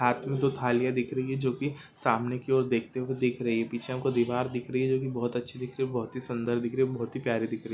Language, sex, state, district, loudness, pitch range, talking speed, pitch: Hindi, male, Andhra Pradesh, Guntur, -30 LUFS, 120-130 Hz, 325 wpm, 125 Hz